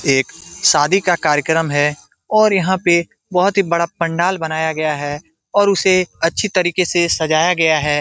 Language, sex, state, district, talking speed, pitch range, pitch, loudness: Hindi, male, Bihar, Saran, 170 wpm, 155-185 Hz, 170 Hz, -16 LUFS